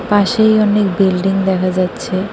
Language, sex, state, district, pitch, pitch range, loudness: Bengali, female, West Bengal, Cooch Behar, 195 Hz, 185-210 Hz, -14 LUFS